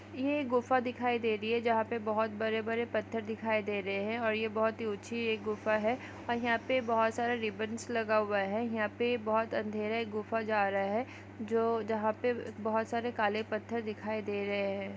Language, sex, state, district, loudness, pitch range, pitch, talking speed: Hindi, female, Maharashtra, Aurangabad, -33 LUFS, 215-235 Hz, 225 Hz, 210 wpm